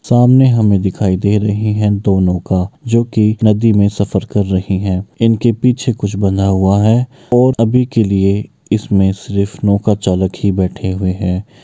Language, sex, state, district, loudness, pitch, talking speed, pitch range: Maithili, male, Bihar, Bhagalpur, -14 LUFS, 100 Hz, 175 wpm, 95-115 Hz